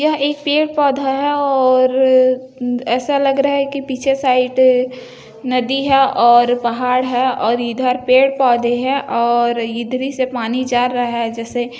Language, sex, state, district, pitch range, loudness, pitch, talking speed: Hindi, female, Chhattisgarh, Bilaspur, 245-270 Hz, -15 LUFS, 255 Hz, 170 wpm